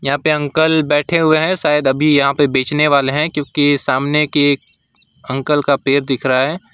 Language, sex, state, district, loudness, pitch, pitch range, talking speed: Hindi, male, West Bengal, Alipurduar, -15 LUFS, 145 Hz, 140-150 Hz, 195 wpm